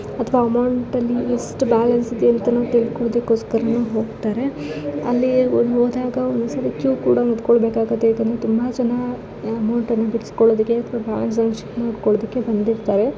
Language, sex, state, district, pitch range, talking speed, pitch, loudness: Kannada, female, Karnataka, Dharwad, 225-245 Hz, 105 wpm, 235 Hz, -19 LUFS